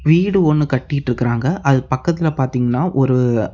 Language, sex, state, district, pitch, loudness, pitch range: Tamil, male, Tamil Nadu, Namakkal, 135 Hz, -17 LUFS, 125-160 Hz